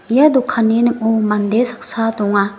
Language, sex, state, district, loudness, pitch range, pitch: Garo, female, Meghalaya, West Garo Hills, -15 LUFS, 210-245 Hz, 225 Hz